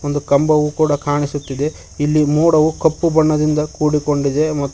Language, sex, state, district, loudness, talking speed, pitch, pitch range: Kannada, male, Karnataka, Koppal, -16 LUFS, 140 wpm, 150 Hz, 145-155 Hz